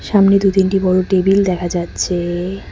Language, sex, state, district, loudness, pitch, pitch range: Bengali, female, West Bengal, Cooch Behar, -15 LUFS, 185 Hz, 180-195 Hz